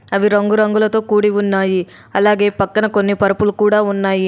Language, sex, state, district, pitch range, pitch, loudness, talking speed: Telugu, female, Telangana, Adilabad, 200-210 Hz, 205 Hz, -15 LUFS, 155 wpm